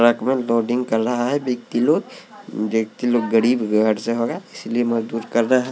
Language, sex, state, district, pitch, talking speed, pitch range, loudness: Hindi, male, Maharashtra, Mumbai Suburban, 115 Hz, 210 wpm, 115-125 Hz, -20 LUFS